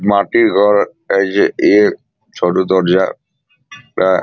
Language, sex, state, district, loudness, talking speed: Bengali, male, West Bengal, Purulia, -13 LUFS, 115 wpm